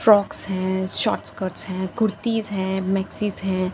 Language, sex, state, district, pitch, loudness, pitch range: Hindi, female, Bihar, Katihar, 190 Hz, -22 LUFS, 190-210 Hz